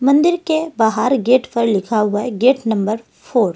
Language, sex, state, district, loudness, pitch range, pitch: Hindi, female, Delhi, New Delhi, -17 LUFS, 215-265 Hz, 235 Hz